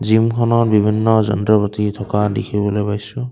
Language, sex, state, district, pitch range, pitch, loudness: Assamese, male, Assam, Kamrup Metropolitan, 105-110 Hz, 105 Hz, -17 LUFS